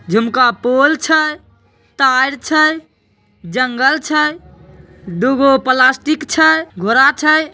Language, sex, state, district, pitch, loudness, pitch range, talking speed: Maithili, female, Bihar, Begusarai, 275 Hz, -13 LUFS, 255-310 Hz, 95 wpm